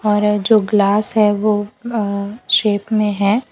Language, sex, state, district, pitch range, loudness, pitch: Hindi, female, Gujarat, Valsad, 205-215 Hz, -16 LUFS, 210 Hz